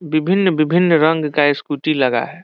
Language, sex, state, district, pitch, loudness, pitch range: Hindi, male, Bihar, Saran, 155 Hz, -16 LUFS, 145-170 Hz